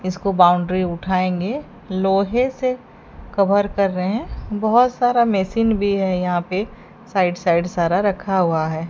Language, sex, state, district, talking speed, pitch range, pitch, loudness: Hindi, female, Odisha, Sambalpur, 140 wpm, 180-220 Hz, 195 Hz, -19 LUFS